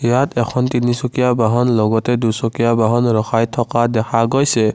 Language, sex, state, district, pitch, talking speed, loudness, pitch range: Assamese, male, Assam, Kamrup Metropolitan, 120 Hz, 140 wpm, -16 LUFS, 115-120 Hz